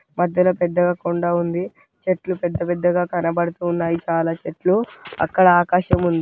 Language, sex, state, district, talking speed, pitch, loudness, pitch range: Telugu, male, Andhra Pradesh, Guntur, 125 wpm, 175 Hz, -20 LUFS, 170-180 Hz